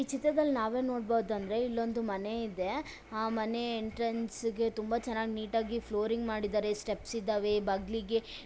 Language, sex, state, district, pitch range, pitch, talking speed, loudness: Kannada, female, Karnataka, Bellary, 215-235 Hz, 225 Hz, 135 wpm, -34 LUFS